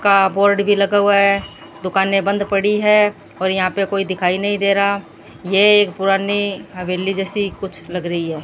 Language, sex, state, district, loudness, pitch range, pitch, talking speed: Hindi, female, Rajasthan, Bikaner, -17 LUFS, 185-200 Hz, 195 Hz, 185 wpm